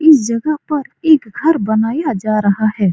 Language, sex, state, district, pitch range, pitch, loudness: Hindi, female, Bihar, Supaul, 215-310 Hz, 235 Hz, -15 LUFS